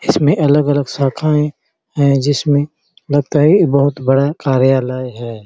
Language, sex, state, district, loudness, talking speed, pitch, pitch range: Hindi, male, Chhattisgarh, Bastar, -14 LUFS, 130 wpm, 145 Hz, 135-150 Hz